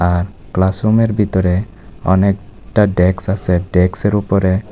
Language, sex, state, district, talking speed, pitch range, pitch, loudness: Bengali, male, Tripura, West Tripura, 115 wpm, 90-105 Hz, 95 Hz, -15 LUFS